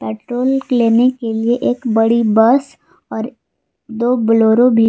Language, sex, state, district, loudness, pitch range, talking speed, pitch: Hindi, female, Jharkhand, Palamu, -14 LUFS, 225-245 Hz, 135 wpm, 235 Hz